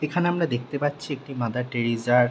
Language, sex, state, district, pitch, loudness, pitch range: Bengali, male, West Bengal, Jhargram, 130 Hz, -26 LUFS, 120-145 Hz